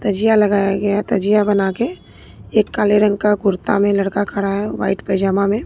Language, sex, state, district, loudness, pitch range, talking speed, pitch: Hindi, female, Bihar, Katihar, -17 LUFS, 195-210 Hz, 200 wpm, 205 Hz